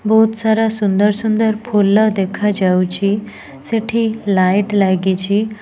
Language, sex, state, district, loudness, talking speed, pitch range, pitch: Odia, female, Odisha, Nuapada, -15 LUFS, 95 wpm, 195-220 Hz, 210 Hz